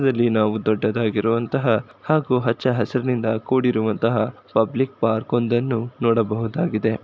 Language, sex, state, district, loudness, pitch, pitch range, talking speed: Kannada, male, Karnataka, Shimoga, -21 LUFS, 115 Hz, 110-125 Hz, 85 wpm